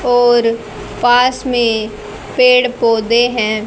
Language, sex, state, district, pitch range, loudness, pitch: Hindi, female, Haryana, Jhajjar, 225-250 Hz, -13 LUFS, 240 Hz